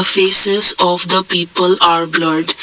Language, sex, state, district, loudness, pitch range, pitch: English, male, Assam, Kamrup Metropolitan, -12 LUFS, 170-190 Hz, 180 Hz